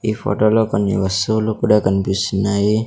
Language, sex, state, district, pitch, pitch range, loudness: Telugu, male, Andhra Pradesh, Sri Satya Sai, 105 Hz, 100-110 Hz, -17 LUFS